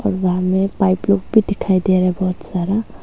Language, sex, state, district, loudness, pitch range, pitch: Hindi, female, Arunachal Pradesh, Longding, -17 LUFS, 185-200 Hz, 190 Hz